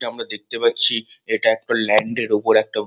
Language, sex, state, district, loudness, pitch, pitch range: Bengali, male, West Bengal, Kolkata, -18 LUFS, 110 Hz, 110-115 Hz